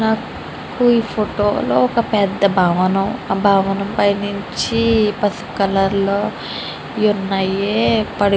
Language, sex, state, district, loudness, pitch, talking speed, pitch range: Telugu, female, Andhra Pradesh, Srikakulam, -17 LUFS, 205 Hz, 80 wpm, 195-220 Hz